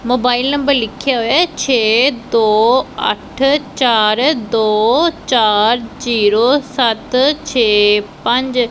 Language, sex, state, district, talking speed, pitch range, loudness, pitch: Punjabi, female, Punjab, Pathankot, 105 wpm, 220-270 Hz, -14 LUFS, 245 Hz